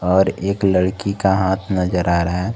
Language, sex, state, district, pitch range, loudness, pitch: Hindi, male, Jharkhand, Garhwa, 90-95 Hz, -18 LUFS, 95 Hz